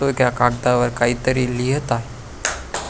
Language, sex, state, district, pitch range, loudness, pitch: Marathi, male, Maharashtra, Pune, 120-130 Hz, -20 LUFS, 125 Hz